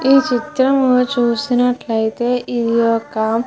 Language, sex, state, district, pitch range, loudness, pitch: Telugu, female, Andhra Pradesh, Guntur, 230-255 Hz, -16 LUFS, 245 Hz